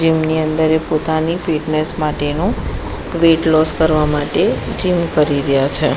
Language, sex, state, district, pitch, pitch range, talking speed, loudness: Gujarati, female, Gujarat, Gandhinagar, 155 Hz, 150-160 Hz, 150 wpm, -16 LUFS